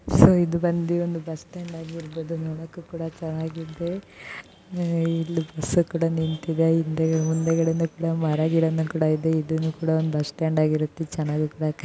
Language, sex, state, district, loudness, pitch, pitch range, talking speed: Kannada, female, Karnataka, Mysore, -24 LUFS, 160 Hz, 160-165 Hz, 80 wpm